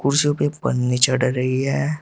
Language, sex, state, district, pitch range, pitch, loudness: Hindi, male, Uttar Pradesh, Shamli, 130-145 Hz, 135 Hz, -20 LUFS